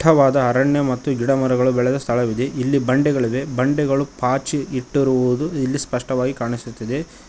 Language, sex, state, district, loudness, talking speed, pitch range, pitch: Kannada, male, Karnataka, Koppal, -19 LUFS, 125 wpm, 125-140 Hz, 130 Hz